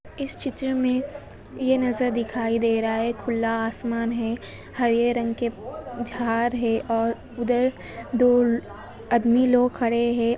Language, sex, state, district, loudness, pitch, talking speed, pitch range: Hindi, female, Uttar Pradesh, Ghazipur, -24 LUFS, 235 Hz, 145 wpm, 230-250 Hz